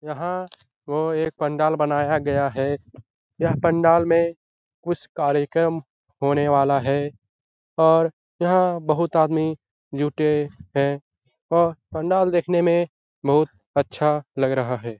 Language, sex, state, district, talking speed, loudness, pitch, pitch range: Hindi, male, Bihar, Lakhisarai, 115 wpm, -22 LUFS, 150 Hz, 140-165 Hz